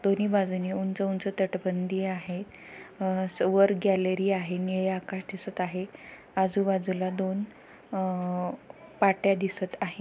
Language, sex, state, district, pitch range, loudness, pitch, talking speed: Marathi, female, Maharashtra, Pune, 185-195 Hz, -29 LUFS, 190 Hz, 120 wpm